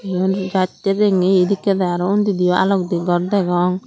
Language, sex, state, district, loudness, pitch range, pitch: Chakma, female, Tripura, Dhalai, -17 LUFS, 180-195 Hz, 185 Hz